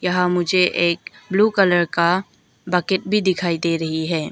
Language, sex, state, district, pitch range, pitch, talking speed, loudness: Hindi, female, Arunachal Pradesh, Lower Dibang Valley, 170-185 Hz, 180 Hz, 165 wpm, -19 LUFS